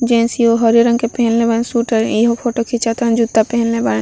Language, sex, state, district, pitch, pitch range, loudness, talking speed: Bhojpuri, female, Bihar, Gopalganj, 235 Hz, 230-235 Hz, -15 LUFS, 195 wpm